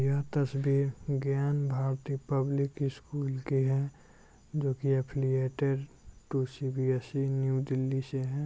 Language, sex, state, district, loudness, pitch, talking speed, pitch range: Hindi, male, Bihar, Darbhanga, -31 LUFS, 135 Hz, 120 wpm, 135-140 Hz